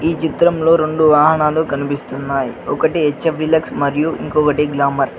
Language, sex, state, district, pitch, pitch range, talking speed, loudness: Telugu, male, Telangana, Mahabubabad, 150 Hz, 140-160 Hz, 125 wpm, -16 LUFS